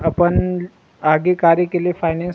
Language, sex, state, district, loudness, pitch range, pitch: Chhattisgarhi, male, Chhattisgarh, Rajnandgaon, -17 LUFS, 165-180 Hz, 175 Hz